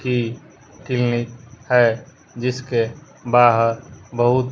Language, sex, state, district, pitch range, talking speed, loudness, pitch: Hindi, male, Bihar, West Champaran, 120-130 Hz, 80 wpm, -19 LUFS, 120 Hz